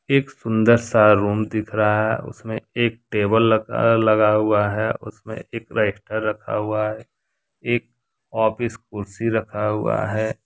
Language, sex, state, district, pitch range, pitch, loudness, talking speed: Hindi, male, Jharkhand, Deoghar, 105-115 Hz, 110 Hz, -20 LUFS, 150 wpm